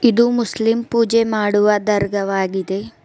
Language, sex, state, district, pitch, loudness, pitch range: Kannada, female, Karnataka, Bidar, 215 Hz, -17 LUFS, 200-230 Hz